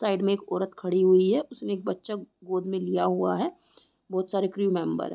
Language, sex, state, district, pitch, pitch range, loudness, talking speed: Hindi, female, Chhattisgarh, Korba, 190 Hz, 185-200 Hz, -27 LUFS, 235 wpm